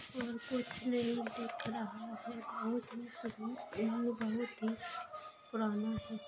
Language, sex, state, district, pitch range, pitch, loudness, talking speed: Hindi, female, Bihar, Lakhisarai, 225-245 Hz, 235 Hz, -40 LUFS, 115 wpm